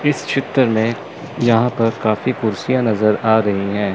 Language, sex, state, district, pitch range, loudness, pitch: Hindi, male, Chandigarh, Chandigarh, 110-130 Hz, -17 LUFS, 115 Hz